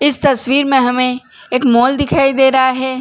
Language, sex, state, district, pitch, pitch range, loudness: Hindi, female, Chhattisgarh, Bilaspur, 260 Hz, 255-275 Hz, -13 LUFS